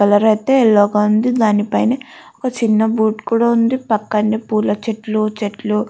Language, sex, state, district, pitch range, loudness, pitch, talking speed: Telugu, female, Andhra Pradesh, Guntur, 210-230 Hz, -16 LUFS, 220 Hz, 140 wpm